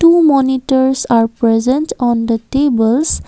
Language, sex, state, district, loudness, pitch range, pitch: English, female, Assam, Kamrup Metropolitan, -13 LUFS, 230-275 Hz, 260 Hz